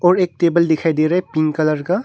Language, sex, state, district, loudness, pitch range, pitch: Hindi, male, Arunachal Pradesh, Longding, -17 LUFS, 155-180 Hz, 170 Hz